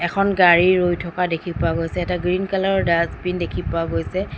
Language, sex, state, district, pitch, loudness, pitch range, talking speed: Assamese, female, Assam, Sonitpur, 175 Hz, -20 LUFS, 165-180 Hz, 190 wpm